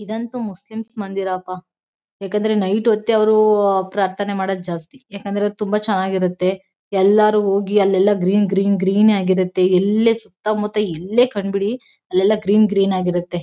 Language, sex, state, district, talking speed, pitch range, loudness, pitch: Kannada, female, Karnataka, Mysore, 135 wpm, 190-215 Hz, -18 LUFS, 200 Hz